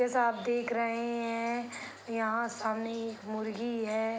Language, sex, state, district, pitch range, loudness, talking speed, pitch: Hindi, female, Bihar, East Champaran, 225-235 Hz, -33 LUFS, 145 wpm, 230 Hz